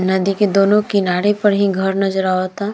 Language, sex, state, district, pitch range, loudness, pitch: Bhojpuri, female, Bihar, East Champaran, 190-205 Hz, -16 LUFS, 195 Hz